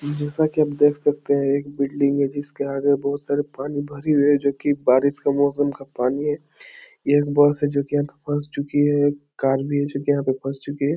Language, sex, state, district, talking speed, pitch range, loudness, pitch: Hindi, male, Bihar, Jahanabad, 250 wpm, 140-145 Hz, -21 LUFS, 145 Hz